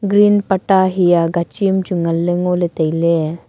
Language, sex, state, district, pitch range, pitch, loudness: Wancho, female, Arunachal Pradesh, Longding, 170-190 Hz, 175 Hz, -15 LUFS